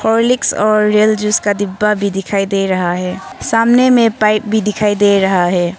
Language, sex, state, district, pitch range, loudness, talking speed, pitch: Hindi, female, Arunachal Pradesh, Longding, 195-215 Hz, -13 LUFS, 195 wpm, 210 Hz